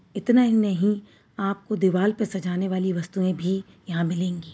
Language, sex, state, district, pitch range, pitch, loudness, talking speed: Hindi, female, Uttar Pradesh, Muzaffarnagar, 180-205 Hz, 190 Hz, -24 LUFS, 160 wpm